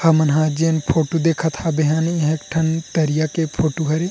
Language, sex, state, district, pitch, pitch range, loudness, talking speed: Chhattisgarhi, male, Chhattisgarh, Rajnandgaon, 160 Hz, 155-165 Hz, -19 LUFS, 220 wpm